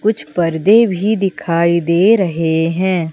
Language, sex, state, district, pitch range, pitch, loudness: Hindi, female, Madhya Pradesh, Umaria, 165-205 Hz, 175 Hz, -14 LUFS